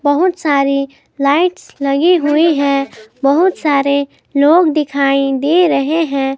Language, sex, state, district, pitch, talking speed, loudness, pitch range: Hindi, female, Himachal Pradesh, Shimla, 280 Hz, 120 wpm, -14 LUFS, 275-320 Hz